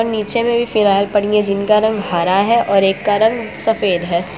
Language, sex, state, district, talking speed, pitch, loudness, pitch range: Hindi, female, Gujarat, Valsad, 220 wpm, 205 Hz, -15 LUFS, 195-225 Hz